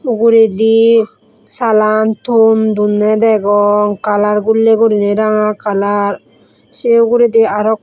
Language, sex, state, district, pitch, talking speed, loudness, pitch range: Chakma, female, Tripura, West Tripura, 220 Hz, 100 wpm, -11 LUFS, 210-225 Hz